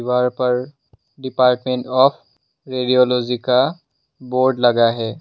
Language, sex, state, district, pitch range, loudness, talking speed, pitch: Hindi, male, Assam, Sonitpur, 125-130 Hz, -18 LUFS, 80 wpm, 125 Hz